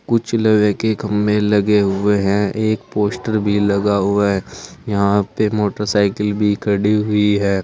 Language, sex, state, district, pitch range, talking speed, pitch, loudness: Hindi, male, Uttar Pradesh, Saharanpur, 100-105 Hz, 155 wpm, 105 Hz, -17 LUFS